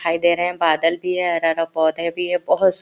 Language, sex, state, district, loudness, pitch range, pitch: Hindi, female, Chhattisgarh, Korba, -19 LUFS, 165-180 Hz, 170 Hz